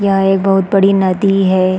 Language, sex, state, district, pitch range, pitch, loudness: Hindi, female, Chhattisgarh, Sarguja, 190-195 Hz, 195 Hz, -12 LUFS